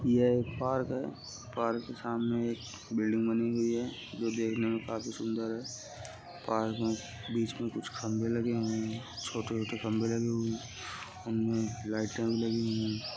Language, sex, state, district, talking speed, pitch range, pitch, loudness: Hindi, male, Uttar Pradesh, Gorakhpur, 175 wpm, 110-115 Hz, 115 Hz, -33 LUFS